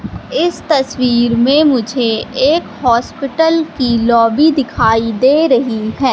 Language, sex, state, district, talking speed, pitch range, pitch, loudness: Hindi, female, Madhya Pradesh, Katni, 115 wpm, 235-295 Hz, 255 Hz, -13 LUFS